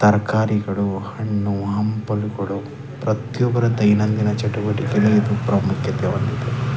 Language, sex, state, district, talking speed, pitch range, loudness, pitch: Kannada, male, Karnataka, Chamarajanagar, 60 wpm, 105-120 Hz, -20 LUFS, 105 Hz